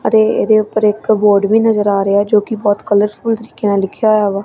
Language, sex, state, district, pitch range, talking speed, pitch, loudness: Punjabi, female, Punjab, Kapurthala, 205-220 Hz, 240 wpm, 210 Hz, -13 LUFS